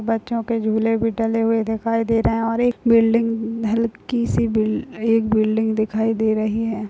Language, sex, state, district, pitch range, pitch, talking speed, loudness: Hindi, female, Uttar Pradesh, Jalaun, 220-230 Hz, 225 Hz, 200 wpm, -20 LUFS